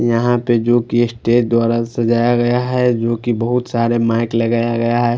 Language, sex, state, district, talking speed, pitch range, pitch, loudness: Hindi, male, Punjab, Fazilka, 185 wpm, 115-120 Hz, 120 Hz, -16 LUFS